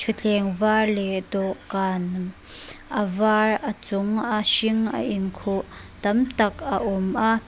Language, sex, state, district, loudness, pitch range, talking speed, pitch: Mizo, female, Mizoram, Aizawl, -22 LUFS, 195-220 Hz, 135 wpm, 210 Hz